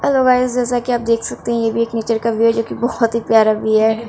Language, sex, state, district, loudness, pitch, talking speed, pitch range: Hindi, female, Bihar, Saharsa, -16 LUFS, 230 Hz, 320 wpm, 225-240 Hz